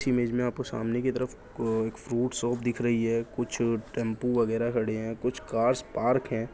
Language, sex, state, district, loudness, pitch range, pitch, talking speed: Hindi, male, Bihar, Jahanabad, -29 LUFS, 115-125 Hz, 120 Hz, 210 wpm